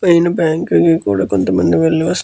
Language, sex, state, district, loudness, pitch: Telugu, male, Andhra Pradesh, Guntur, -14 LUFS, 160 Hz